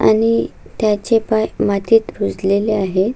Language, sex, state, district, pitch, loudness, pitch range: Marathi, female, Maharashtra, Solapur, 200 Hz, -17 LUFS, 190-220 Hz